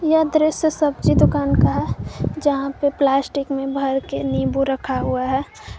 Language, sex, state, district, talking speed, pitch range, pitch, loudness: Hindi, female, Jharkhand, Garhwa, 165 wpm, 270-305 Hz, 275 Hz, -20 LUFS